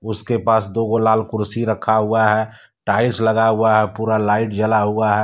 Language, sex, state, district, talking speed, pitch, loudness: Hindi, male, Jharkhand, Deoghar, 205 wpm, 110 Hz, -17 LUFS